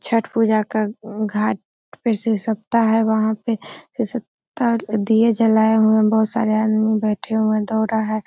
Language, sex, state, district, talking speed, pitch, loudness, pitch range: Hindi, female, Uttar Pradesh, Hamirpur, 175 wpm, 220 Hz, -19 LUFS, 215-225 Hz